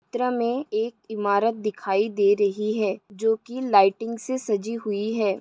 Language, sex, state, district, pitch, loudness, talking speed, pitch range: Hindi, female, Maharashtra, Aurangabad, 215 Hz, -24 LUFS, 165 wpm, 205-230 Hz